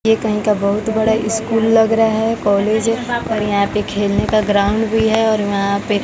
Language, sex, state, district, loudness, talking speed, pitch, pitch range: Hindi, female, Bihar, West Champaran, -16 LUFS, 210 wpm, 220 Hz, 205-225 Hz